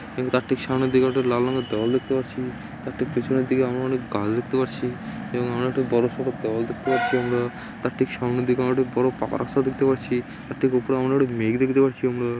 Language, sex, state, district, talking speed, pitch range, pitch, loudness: Bengali, male, West Bengal, Malda, 230 wpm, 120-130 Hz, 125 Hz, -24 LUFS